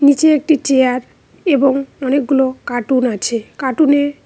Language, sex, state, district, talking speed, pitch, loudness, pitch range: Bengali, female, West Bengal, Cooch Behar, 125 wpm, 270 Hz, -15 LUFS, 255-285 Hz